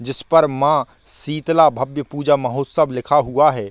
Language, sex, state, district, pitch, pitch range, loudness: Hindi, male, Chhattisgarh, Korba, 145 Hz, 130-150 Hz, -17 LUFS